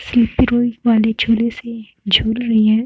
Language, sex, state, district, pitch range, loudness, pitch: Hindi, female, Bihar, Muzaffarpur, 220-240 Hz, -16 LUFS, 230 Hz